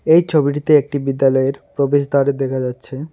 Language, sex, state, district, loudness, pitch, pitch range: Bengali, male, West Bengal, Alipurduar, -17 LUFS, 140 Hz, 135-145 Hz